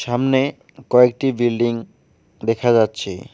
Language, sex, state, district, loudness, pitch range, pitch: Bengali, male, West Bengal, Alipurduar, -18 LUFS, 115-130 Hz, 120 Hz